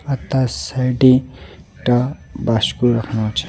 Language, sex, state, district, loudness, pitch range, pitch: Bengali, male, West Bengal, Alipurduar, -18 LUFS, 110-130 Hz, 125 Hz